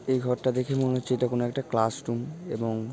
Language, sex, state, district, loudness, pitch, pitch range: Bengali, male, West Bengal, Malda, -28 LUFS, 125 Hz, 115-130 Hz